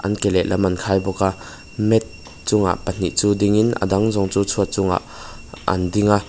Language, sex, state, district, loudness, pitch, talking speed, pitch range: Mizo, male, Mizoram, Aizawl, -20 LUFS, 100 Hz, 180 wpm, 95-105 Hz